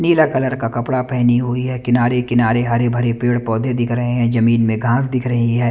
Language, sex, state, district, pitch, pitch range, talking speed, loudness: Hindi, male, Chandigarh, Chandigarh, 120 Hz, 120-125 Hz, 230 wpm, -17 LUFS